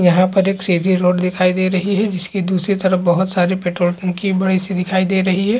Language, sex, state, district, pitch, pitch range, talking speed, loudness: Hindi, male, Chhattisgarh, Balrampur, 185 Hz, 180-190 Hz, 245 wpm, -16 LUFS